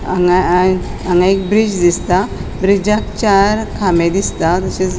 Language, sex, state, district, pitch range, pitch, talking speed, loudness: Konkani, female, Goa, North and South Goa, 180-200 Hz, 185 Hz, 130 wpm, -14 LUFS